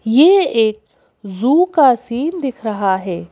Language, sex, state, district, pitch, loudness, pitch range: Hindi, female, Madhya Pradesh, Bhopal, 235 Hz, -15 LUFS, 210-285 Hz